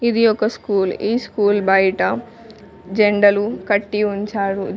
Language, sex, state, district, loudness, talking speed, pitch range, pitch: Telugu, female, Telangana, Mahabubabad, -18 LUFS, 115 wpm, 200-220 Hz, 205 Hz